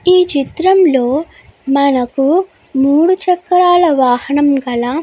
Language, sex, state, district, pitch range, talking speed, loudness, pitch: Telugu, female, Andhra Pradesh, Guntur, 270-360 Hz, 105 wpm, -12 LUFS, 290 Hz